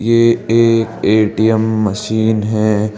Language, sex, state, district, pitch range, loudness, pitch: Hindi, male, Uttar Pradesh, Saharanpur, 105-115 Hz, -14 LUFS, 110 Hz